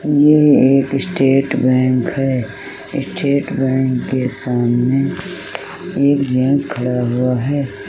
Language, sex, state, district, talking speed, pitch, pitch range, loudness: Hindi, male, Uttar Pradesh, Jalaun, 105 wpm, 135 Hz, 125-140 Hz, -16 LUFS